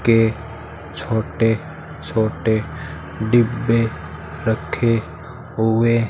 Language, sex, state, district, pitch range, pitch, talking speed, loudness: Hindi, male, Rajasthan, Bikaner, 110-115 Hz, 110 Hz, 70 wpm, -20 LUFS